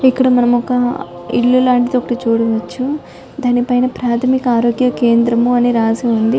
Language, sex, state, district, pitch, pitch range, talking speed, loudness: Telugu, female, Telangana, Karimnagar, 245 Hz, 235-255 Hz, 120 wpm, -14 LUFS